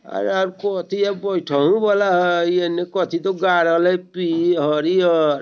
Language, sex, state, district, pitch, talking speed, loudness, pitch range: Bajjika, male, Bihar, Vaishali, 180 Hz, 175 wpm, -19 LUFS, 170-190 Hz